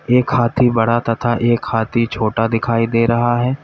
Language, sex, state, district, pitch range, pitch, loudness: Hindi, male, Uttar Pradesh, Lalitpur, 115-120 Hz, 120 Hz, -16 LUFS